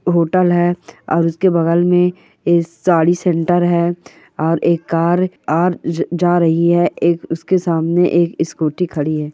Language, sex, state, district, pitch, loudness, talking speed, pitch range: Hindi, female, Andhra Pradesh, Guntur, 170 Hz, -16 LUFS, 150 wpm, 165-175 Hz